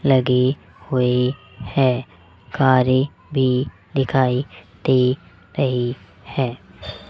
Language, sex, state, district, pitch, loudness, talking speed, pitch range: Hindi, male, Rajasthan, Jaipur, 125 Hz, -20 LUFS, 75 wpm, 100-130 Hz